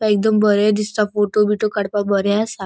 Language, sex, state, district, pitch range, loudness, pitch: Konkani, female, Goa, North and South Goa, 205-215 Hz, -17 LUFS, 210 Hz